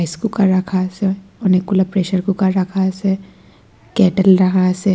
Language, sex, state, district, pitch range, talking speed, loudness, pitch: Bengali, female, Tripura, West Tripura, 185-195 Hz, 135 wpm, -16 LUFS, 190 Hz